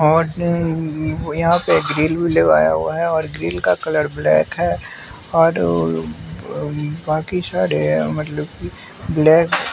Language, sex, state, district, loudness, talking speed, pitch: Hindi, male, Bihar, West Champaran, -18 LUFS, 130 wpm, 150 Hz